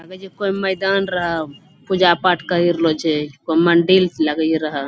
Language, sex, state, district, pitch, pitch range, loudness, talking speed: Angika, female, Bihar, Bhagalpur, 170 Hz, 160-185 Hz, -17 LUFS, 170 wpm